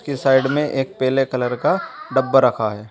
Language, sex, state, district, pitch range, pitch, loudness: Hindi, male, Uttar Pradesh, Shamli, 125-135 Hz, 130 Hz, -19 LUFS